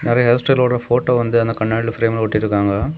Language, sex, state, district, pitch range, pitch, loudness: Tamil, male, Tamil Nadu, Kanyakumari, 110-125 Hz, 115 Hz, -16 LUFS